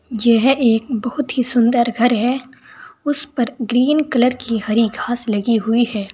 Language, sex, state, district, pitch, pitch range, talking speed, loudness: Hindi, female, Uttar Pradesh, Saharanpur, 240 Hz, 230-255 Hz, 165 wpm, -17 LUFS